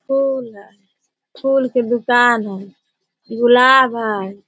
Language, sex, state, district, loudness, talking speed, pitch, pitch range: Hindi, female, Bihar, Sitamarhi, -15 LUFS, 105 wpm, 240 Hz, 205-260 Hz